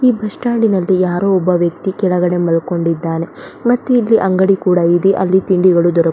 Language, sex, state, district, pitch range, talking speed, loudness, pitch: Kannada, female, Karnataka, Belgaum, 175-195 Hz, 165 wpm, -14 LUFS, 185 Hz